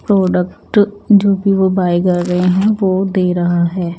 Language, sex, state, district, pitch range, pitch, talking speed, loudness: Hindi, female, Chandigarh, Chandigarh, 180-200 Hz, 185 Hz, 150 wpm, -14 LUFS